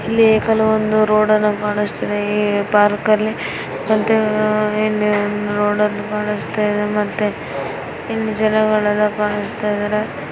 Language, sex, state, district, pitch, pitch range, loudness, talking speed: Kannada, female, Karnataka, Shimoga, 210 Hz, 205-215 Hz, -17 LUFS, 115 wpm